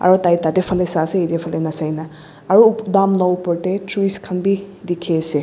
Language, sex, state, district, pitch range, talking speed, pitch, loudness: Nagamese, female, Nagaland, Dimapur, 160-190 Hz, 230 wpm, 180 Hz, -17 LUFS